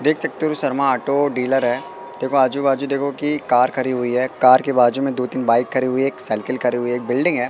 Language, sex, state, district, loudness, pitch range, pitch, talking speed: Hindi, male, Madhya Pradesh, Katni, -19 LUFS, 125-140 Hz, 130 Hz, 255 wpm